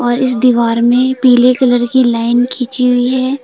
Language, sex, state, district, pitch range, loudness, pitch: Hindi, female, Arunachal Pradesh, Papum Pare, 240-255 Hz, -11 LUFS, 250 Hz